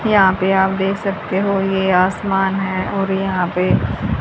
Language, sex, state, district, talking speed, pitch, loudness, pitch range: Hindi, female, Haryana, Rohtak, 170 wpm, 195 Hz, -17 LUFS, 190-195 Hz